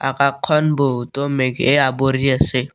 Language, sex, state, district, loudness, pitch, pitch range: Assamese, male, Assam, Kamrup Metropolitan, -17 LUFS, 135 Hz, 130-140 Hz